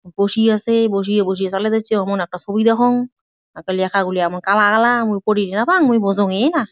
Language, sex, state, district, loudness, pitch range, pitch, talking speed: Bengali, female, West Bengal, Jalpaiguri, -17 LUFS, 195-230 Hz, 210 Hz, 205 wpm